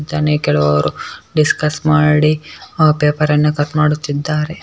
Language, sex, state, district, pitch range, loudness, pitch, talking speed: Kannada, male, Karnataka, Bellary, 150-155 Hz, -15 LUFS, 150 Hz, 105 wpm